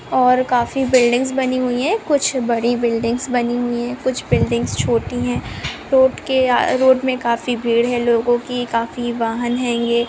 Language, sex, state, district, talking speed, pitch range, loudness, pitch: Hindi, female, Chhattisgarh, Bilaspur, 180 wpm, 235-255 Hz, -18 LUFS, 240 Hz